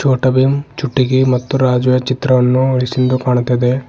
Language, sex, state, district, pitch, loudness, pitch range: Kannada, male, Karnataka, Bidar, 130 Hz, -14 LUFS, 125-130 Hz